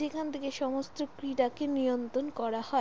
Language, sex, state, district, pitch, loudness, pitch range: Bengali, female, West Bengal, Jalpaiguri, 270 Hz, -33 LUFS, 255-290 Hz